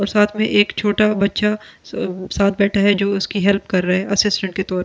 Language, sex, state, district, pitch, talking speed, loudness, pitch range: Hindi, female, Delhi, New Delhi, 200 Hz, 245 wpm, -18 LUFS, 195-210 Hz